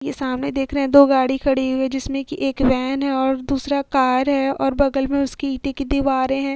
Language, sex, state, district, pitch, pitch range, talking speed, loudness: Hindi, female, Uttar Pradesh, Hamirpur, 275 Hz, 265-280 Hz, 240 wpm, -19 LUFS